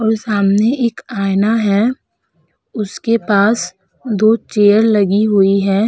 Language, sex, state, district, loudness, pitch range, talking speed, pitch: Hindi, female, Uttar Pradesh, Budaun, -14 LUFS, 200-225 Hz, 120 wpm, 215 Hz